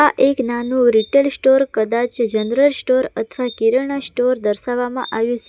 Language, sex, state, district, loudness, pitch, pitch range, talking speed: Gujarati, female, Gujarat, Valsad, -17 LUFS, 250 Hz, 230-265 Hz, 155 wpm